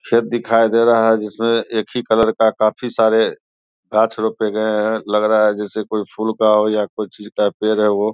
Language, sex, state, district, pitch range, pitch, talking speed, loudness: Hindi, male, Bihar, Saharsa, 105-115 Hz, 110 Hz, 230 wpm, -17 LUFS